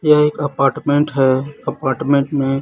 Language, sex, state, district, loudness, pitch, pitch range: Hindi, male, Chhattisgarh, Raipur, -17 LUFS, 140 Hz, 135-150 Hz